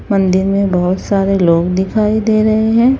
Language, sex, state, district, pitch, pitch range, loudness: Hindi, female, Chhattisgarh, Raipur, 195 Hz, 185-215 Hz, -13 LUFS